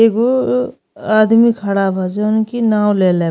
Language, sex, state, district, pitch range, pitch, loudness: Bhojpuri, female, Uttar Pradesh, Ghazipur, 195-230 Hz, 215 Hz, -14 LUFS